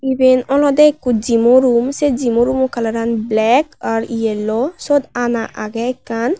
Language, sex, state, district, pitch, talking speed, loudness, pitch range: Chakma, female, Tripura, West Tripura, 245 Hz, 150 wpm, -15 LUFS, 230-265 Hz